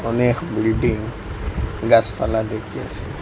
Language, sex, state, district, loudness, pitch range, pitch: Bengali, female, Assam, Hailakandi, -21 LUFS, 100-115 Hz, 110 Hz